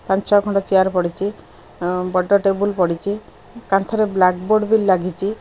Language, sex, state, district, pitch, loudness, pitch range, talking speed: Odia, female, Odisha, Khordha, 195 Hz, -18 LUFS, 185-205 Hz, 145 wpm